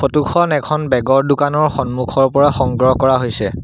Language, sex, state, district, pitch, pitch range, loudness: Assamese, male, Assam, Sonitpur, 135 Hz, 125-145 Hz, -15 LUFS